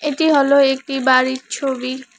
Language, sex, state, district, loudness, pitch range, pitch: Bengali, female, West Bengal, Alipurduar, -16 LUFS, 260-280 Hz, 270 Hz